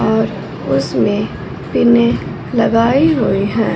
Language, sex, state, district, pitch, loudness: Hindi, female, Punjab, Fazilka, 195 Hz, -15 LUFS